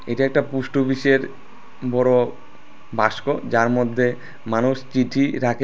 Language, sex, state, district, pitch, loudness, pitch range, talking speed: Bengali, male, Tripura, West Tripura, 130 Hz, -21 LUFS, 120-135 Hz, 115 wpm